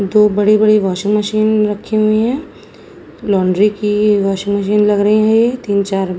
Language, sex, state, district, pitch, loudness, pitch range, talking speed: Hindi, female, Uttar Pradesh, Jalaun, 210 Hz, -14 LUFS, 200-215 Hz, 185 wpm